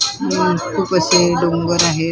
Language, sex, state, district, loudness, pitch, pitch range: Marathi, female, Maharashtra, Mumbai Suburban, -16 LUFS, 170 Hz, 165-180 Hz